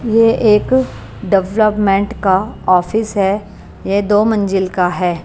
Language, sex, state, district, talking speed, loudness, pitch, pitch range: Hindi, female, Punjab, Kapurthala, 125 wpm, -14 LUFS, 200 Hz, 190-220 Hz